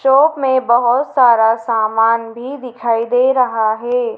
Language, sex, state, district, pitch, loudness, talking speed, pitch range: Hindi, female, Madhya Pradesh, Dhar, 245 Hz, -14 LUFS, 145 wpm, 230-265 Hz